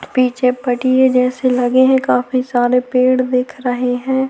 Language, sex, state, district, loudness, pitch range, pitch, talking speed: Hindi, female, Chhattisgarh, Sukma, -15 LUFS, 250-255 Hz, 255 Hz, 155 wpm